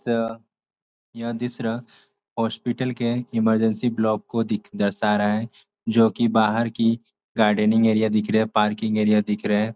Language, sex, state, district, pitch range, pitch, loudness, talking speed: Hindi, male, Uttar Pradesh, Ghazipur, 105-115 Hz, 110 Hz, -22 LUFS, 155 wpm